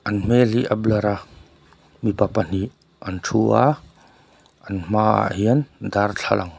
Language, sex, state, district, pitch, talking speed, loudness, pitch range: Mizo, male, Mizoram, Aizawl, 105 Hz, 135 wpm, -20 LUFS, 100-115 Hz